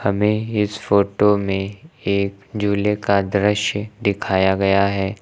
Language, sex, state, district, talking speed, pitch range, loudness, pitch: Hindi, male, Uttar Pradesh, Lucknow, 125 wpm, 100-105 Hz, -19 LUFS, 100 Hz